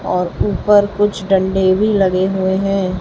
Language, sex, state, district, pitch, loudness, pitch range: Hindi, female, Chhattisgarh, Raipur, 195 Hz, -15 LUFS, 190-205 Hz